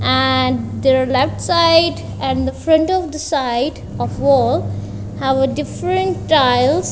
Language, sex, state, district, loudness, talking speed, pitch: English, female, Punjab, Kapurthala, -16 LUFS, 155 wpm, 265 Hz